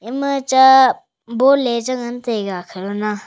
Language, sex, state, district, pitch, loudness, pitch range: Wancho, male, Arunachal Pradesh, Longding, 240 Hz, -16 LUFS, 210-265 Hz